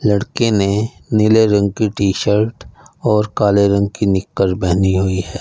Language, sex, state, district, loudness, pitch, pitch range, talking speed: Hindi, male, Punjab, Fazilka, -16 LUFS, 100 Hz, 95-110 Hz, 165 wpm